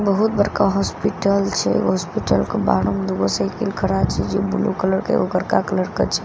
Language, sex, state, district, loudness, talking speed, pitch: Maithili, female, Bihar, Katihar, -20 LUFS, 200 wpm, 190 Hz